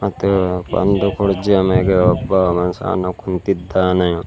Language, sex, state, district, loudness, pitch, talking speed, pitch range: Kannada, male, Karnataka, Bidar, -16 LUFS, 95 Hz, 100 wpm, 90-100 Hz